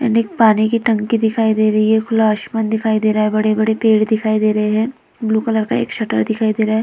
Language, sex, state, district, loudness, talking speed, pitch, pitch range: Hindi, female, Uttar Pradesh, Hamirpur, -16 LUFS, 265 wpm, 220 Hz, 215-220 Hz